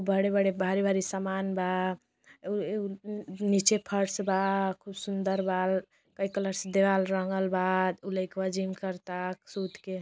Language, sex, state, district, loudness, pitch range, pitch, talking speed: Bhojpuri, female, Uttar Pradesh, Deoria, -30 LUFS, 185-195 Hz, 190 Hz, 150 wpm